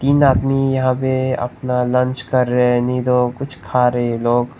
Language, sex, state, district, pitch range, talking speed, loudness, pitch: Hindi, male, Nagaland, Dimapur, 125-130 Hz, 210 wpm, -17 LUFS, 125 Hz